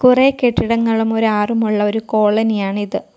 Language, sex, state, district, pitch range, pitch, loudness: Malayalam, female, Kerala, Kollam, 210-230 Hz, 220 Hz, -16 LUFS